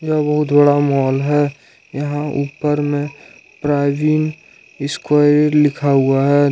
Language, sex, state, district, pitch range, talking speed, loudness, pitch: Hindi, male, Jharkhand, Ranchi, 140-150 Hz, 120 wpm, -16 LUFS, 145 Hz